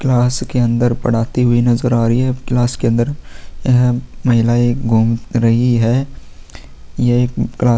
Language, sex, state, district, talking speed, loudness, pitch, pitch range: Hindi, male, Chhattisgarh, Kabirdham, 155 wpm, -15 LUFS, 120 Hz, 115-125 Hz